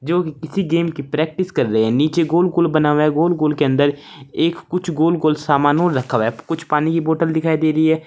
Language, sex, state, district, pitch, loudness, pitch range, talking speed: Hindi, male, Uttar Pradesh, Saharanpur, 160 Hz, -18 LUFS, 150-170 Hz, 270 wpm